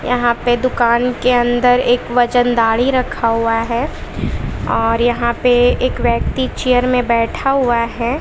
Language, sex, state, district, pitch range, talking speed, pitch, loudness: Hindi, female, Bihar, West Champaran, 235-250 Hz, 145 wpm, 245 Hz, -15 LUFS